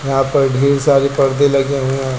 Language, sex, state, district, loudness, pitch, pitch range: Hindi, male, Uttar Pradesh, Lucknow, -14 LUFS, 135 Hz, 135-140 Hz